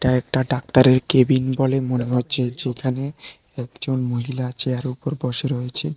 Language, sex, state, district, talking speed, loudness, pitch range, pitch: Bengali, male, Tripura, West Tripura, 130 wpm, -21 LUFS, 125-130 Hz, 130 Hz